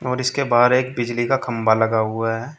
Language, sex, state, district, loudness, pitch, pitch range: Hindi, male, Uttar Pradesh, Saharanpur, -19 LUFS, 120 Hz, 115-125 Hz